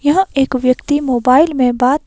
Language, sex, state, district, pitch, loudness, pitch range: Hindi, female, Himachal Pradesh, Shimla, 270 Hz, -14 LUFS, 255-290 Hz